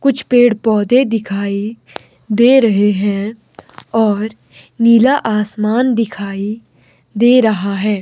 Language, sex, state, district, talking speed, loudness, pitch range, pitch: Hindi, male, Himachal Pradesh, Shimla, 105 wpm, -14 LUFS, 205-240 Hz, 220 Hz